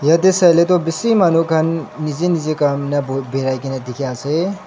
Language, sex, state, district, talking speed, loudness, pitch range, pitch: Nagamese, male, Nagaland, Dimapur, 180 wpm, -17 LUFS, 140-170 Hz, 155 Hz